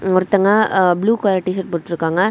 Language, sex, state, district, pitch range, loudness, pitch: Tamil, female, Tamil Nadu, Kanyakumari, 180-200 Hz, -16 LUFS, 185 Hz